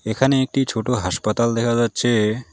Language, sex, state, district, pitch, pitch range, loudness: Bengali, male, West Bengal, Alipurduar, 115 Hz, 110-125 Hz, -20 LUFS